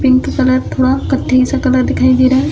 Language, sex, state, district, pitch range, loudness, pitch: Hindi, female, Uttar Pradesh, Hamirpur, 255-265 Hz, -13 LUFS, 260 Hz